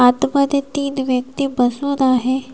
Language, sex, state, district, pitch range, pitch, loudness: Marathi, female, Maharashtra, Washim, 255-280 Hz, 265 Hz, -18 LUFS